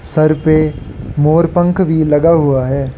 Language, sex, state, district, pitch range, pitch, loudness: Hindi, male, Arunachal Pradesh, Lower Dibang Valley, 140-165 Hz, 155 Hz, -12 LUFS